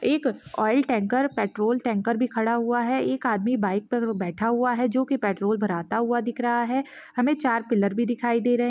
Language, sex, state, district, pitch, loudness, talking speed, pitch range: Hindi, female, Chhattisgarh, Balrampur, 235 Hz, -24 LUFS, 215 wpm, 220-250 Hz